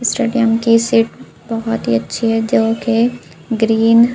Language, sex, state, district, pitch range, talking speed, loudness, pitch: Hindi, female, Uttar Pradesh, Budaun, 225-230 Hz, 145 wpm, -15 LUFS, 225 Hz